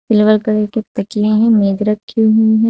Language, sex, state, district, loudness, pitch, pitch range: Hindi, female, Uttar Pradesh, Saharanpur, -14 LUFS, 215 Hz, 210-220 Hz